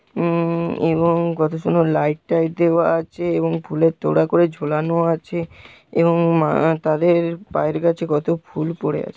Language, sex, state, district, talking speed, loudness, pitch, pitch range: Bengali, male, West Bengal, Jhargram, 145 wpm, -19 LUFS, 165 Hz, 155-170 Hz